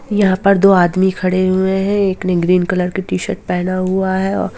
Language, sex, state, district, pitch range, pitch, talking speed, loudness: Hindi, female, Jharkhand, Sahebganj, 180-195 Hz, 185 Hz, 235 wpm, -15 LUFS